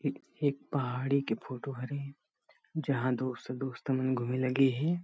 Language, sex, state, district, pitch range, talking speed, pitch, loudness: Chhattisgarhi, male, Chhattisgarh, Rajnandgaon, 130-140 Hz, 145 wpm, 135 Hz, -33 LUFS